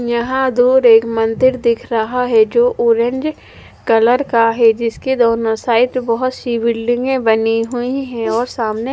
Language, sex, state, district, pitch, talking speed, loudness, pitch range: Hindi, female, Punjab, Fazilka, 235 Hz, 150 wpm, -15 LUFS, 230-250 Hz